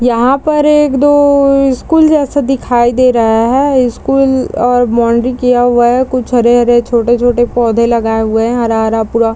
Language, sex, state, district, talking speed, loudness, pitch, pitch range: Hindi, female, Bihar, Madhepura, 165 wpm, -10 LUFS, 245 Hz, 235-270 Hz